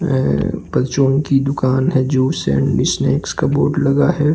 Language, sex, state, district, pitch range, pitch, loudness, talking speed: Hindi, male, Uttar Pradesh, Jalaun, 130-145 Hz, 135 Hz, -16 LUFS, 165 wpm